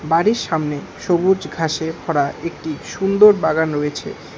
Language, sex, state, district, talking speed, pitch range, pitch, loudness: Bengali, male, West Bengal, Alipurduar, 125 wpm, 155-185 Hz, 160 Hz, -18 LUFS